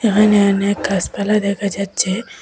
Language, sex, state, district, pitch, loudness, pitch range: Bengali, female, Assam, Hailakandi, 200 Hz, -17 LUFS, 200-210 Hz